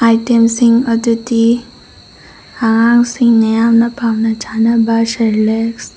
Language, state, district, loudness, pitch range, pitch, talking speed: Manipuri, Manipur, Imphal West, -12 LUFS, 225-235 Hz, 230 Hz, 100 wpm